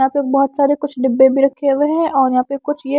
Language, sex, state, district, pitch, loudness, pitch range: Hindi, female, Punjab, Kapurthala, 275 Hz, -15 LUFS, 265-290 Hz